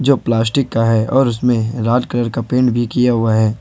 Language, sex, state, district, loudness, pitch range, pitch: Hindi, male, Jharkhand, Ranchi, -15 LUFS, 115-125 Hz, 120 Hz